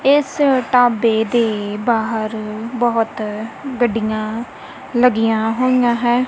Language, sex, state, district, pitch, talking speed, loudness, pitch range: Punjabi, female, Punjab, Kapurthala, 230 Hz, 85 wpm, -17 LUFS, 220-250 Hz